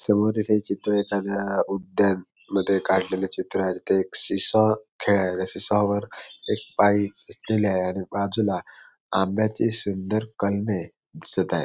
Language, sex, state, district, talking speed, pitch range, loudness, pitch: Marathi, male, Maharashtra, Sindhudurg, 140 wpm, 95-105 Hz, -24 LUFS, 100 Hz